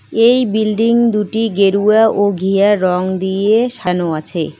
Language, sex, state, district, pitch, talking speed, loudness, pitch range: Bengali, female, West Bengal, Cooch Behar, 205 Hz, 115 wpm, -14 LUFS, 185-225 Hz